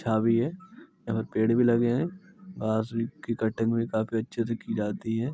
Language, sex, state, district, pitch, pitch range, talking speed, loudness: Hindi, male, Uttar Pradesh, Jalaun, 115 Hz, 110-125 Hz, 170 wpm, -28 LUFS